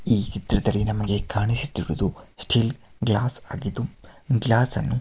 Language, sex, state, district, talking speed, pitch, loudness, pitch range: Kannada, male, Karnataka, Mysore, 130 wpm, 110 Hz, -22 LUFS, 100-120 Hz